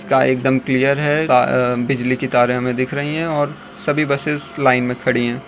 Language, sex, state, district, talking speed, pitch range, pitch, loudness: Hindi, male, Uttar Pradesh, Jyotiba Phule Nagar, 210 wpm, 125-145 Hz, 130 Hz, -17 LUFS